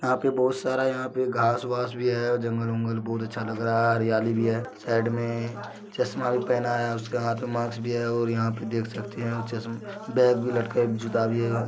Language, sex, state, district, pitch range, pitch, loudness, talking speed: Maithili, male, Bihar, Supaul, 115-125 Hz, 115 Hz, -26 LUFS, 250 wpm